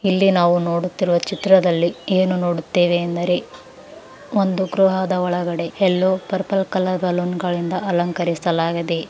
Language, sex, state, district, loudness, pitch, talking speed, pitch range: Kannada, female, Karnataka, Raichur, -19 LUFS, 180 Hz, 105 wpm, 175-190 Hz